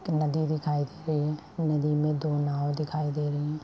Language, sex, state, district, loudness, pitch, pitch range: Hindi, female, Bihar, Madhepura, -29 LUFS, 150 Hz, 145-155 Hz